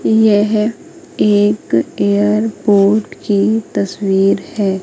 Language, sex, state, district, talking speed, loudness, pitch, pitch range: Hindi, female, Madhya Pradesh, Katni, 75 wpm, -14 LUFS, 205 Hz, 200-220 Hz